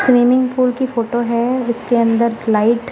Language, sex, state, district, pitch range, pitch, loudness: Hindi, female, Punjab, Kapurthala, 235-250 Hz, 240 Hz, -16 LUFS